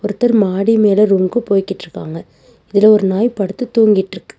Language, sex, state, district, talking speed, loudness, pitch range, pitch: Tamil, female, Tamil Nadu, Nilgiris, 135 wpm, -13 LUFS, 190-220 Hz, 205 Hz